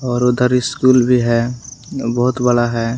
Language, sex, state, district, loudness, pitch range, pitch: Hindi, male, Jharkhand, Palamu, -15 LUFS, 120-125 Hz, 125 Hz